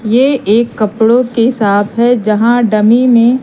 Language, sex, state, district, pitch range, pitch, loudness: Hindi, female, Madhya Pradesh, Katni, 215-245 Hz, 230 Hz, -10 LUFS